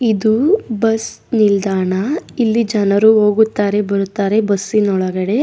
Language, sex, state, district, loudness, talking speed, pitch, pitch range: Kannada, female, Karnataka, Dakshina Kannada, -15 LUFS, 100 wpm, 215 Hz, 200-225 Hz